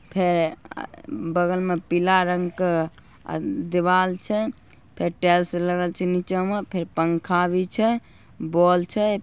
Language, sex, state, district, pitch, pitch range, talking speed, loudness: Hindi, female, Bihar, Begusarai, 180 Hz, 175-185 Hz, 145 wpm, -23 LUFS